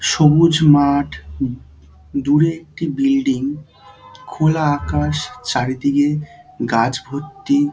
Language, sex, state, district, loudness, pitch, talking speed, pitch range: Bengali, male, West Bengal, Dakshin Dinajpur, -17 LUFS, 140 Hz, 80 wpm, 115-155 Hz